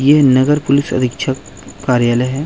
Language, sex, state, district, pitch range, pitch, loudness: Hindi, male, Chhattisgarh, Rajnandgaon, 125-140 Hz, 130 Hz, -14 LUFS